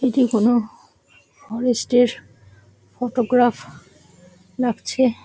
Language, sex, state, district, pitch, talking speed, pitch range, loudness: Bengali, female, West Bengal, Jalpaiguri, 240 Hz, 80 wpm, 215-250 Hz, -20 LUFS